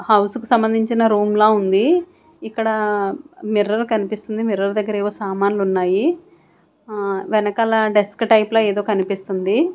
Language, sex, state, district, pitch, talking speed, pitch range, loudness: Telugu, female, Andhra Pradesh, Sri Satya Sai, 215 Hz, 125 wpm, 200-225 Hz, -18 LUFS